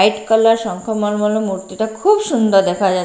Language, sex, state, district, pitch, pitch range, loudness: Bengali, female, Bihar, Katihar, 210 Hz, 195-225 Hz, -16 LUFS